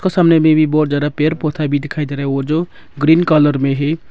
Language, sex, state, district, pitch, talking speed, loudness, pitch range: Hindi, male, Arunachal Pradesh, Longding, 155 Hz, 275 wpm, -15 LUFS, 145-160 Hz